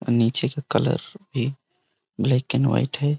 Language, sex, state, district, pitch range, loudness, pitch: Hindi, male, Jharkhand, Sahebganj, 130-150 Hz, -23 LUFS, 140 Hz